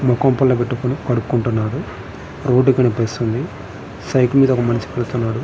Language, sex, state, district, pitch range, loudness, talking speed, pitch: Telugu, male, Andhra Pradesh, Srikakulam, 115-130 Hz, -18 LUFS, 120 wpm, 125 Hz